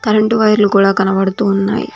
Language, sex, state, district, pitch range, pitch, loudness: Telugu, female, Telangana, Mahabubabad, 195-215 Hz, 205 Hz, -13 LUFS